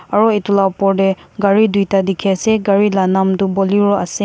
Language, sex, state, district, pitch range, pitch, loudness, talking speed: Nagamese, female, Nagaland, Kohima, 195-205 Hz, 200 Hz, -14 LUFS, 125 wpm